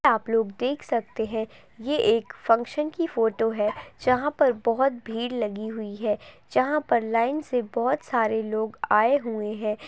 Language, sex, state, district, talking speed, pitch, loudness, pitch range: Hindi, female, Uttar Pradesh, Budaun, 170 wpm, 230 Hz, -25 LUFS, 220-275 Hz